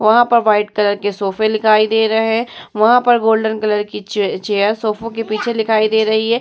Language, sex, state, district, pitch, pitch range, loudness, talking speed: Hindi, female, Uttar Pradesh, Muzaffarnagar, 220 Hz, 210-225 Hz, -15 LUFS, 215 wpm